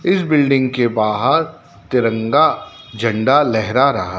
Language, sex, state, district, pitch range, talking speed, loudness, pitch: Hindi, male, Madhya Pradesh, Dhar, 110-140 Hz, 115 wpm, -16 LUFS, 125 Hz